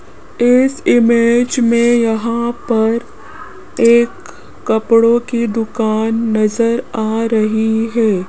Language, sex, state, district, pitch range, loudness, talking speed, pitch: Hindi, female, Rajasthan, Jaipur, 220-235 Hz, -14 LUFS, 95 wpm, 230 Hz